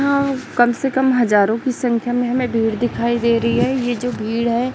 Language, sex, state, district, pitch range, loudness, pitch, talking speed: Hindi, female, Chhattisgarh, Raipur, 235-255 Hz, -18 LUFS, 240 Hz, 215 wpm